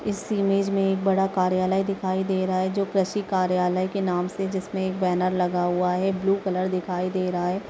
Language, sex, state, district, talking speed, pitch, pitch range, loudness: Hindi, female, Chhattisgarh, Raigarh, 220 wpm, 190 Hz, 185-195 Hz, -24 LUFS